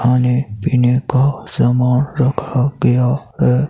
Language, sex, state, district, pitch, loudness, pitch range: Hindi, male, Himachal Pradesh, Shimla, 125 Hz, -16 LUFS, 125-140 Hz